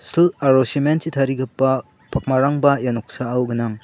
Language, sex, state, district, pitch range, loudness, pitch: Garo, male, Meghalaya, South Garo Hills, 125-140 Hz, -19 LUFS, 135 Hz